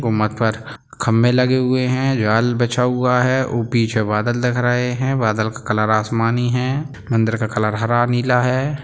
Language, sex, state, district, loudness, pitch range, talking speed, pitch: Hindi, male, Bihar, Darbhanga, -18 LUFS, 110-125 Hz, 170 wpm, 120 Hz